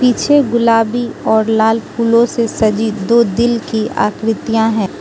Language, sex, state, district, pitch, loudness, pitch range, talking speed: Hindi, female, Manipur, Imphal West, 225 Hz, -14 LUFS, 220-235 Hz, 145 wpm